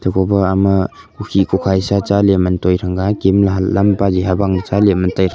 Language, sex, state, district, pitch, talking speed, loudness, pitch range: Wancho, male, Arunachal Pradesh, Longding, 95 Hz, 155 wpm, -15 LUFS, 95-100 Hz